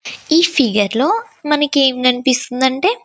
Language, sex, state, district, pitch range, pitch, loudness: Telugu, female, Telangana, Karimnagar, 255-330 Hz, 275 Hz, -15 LUFS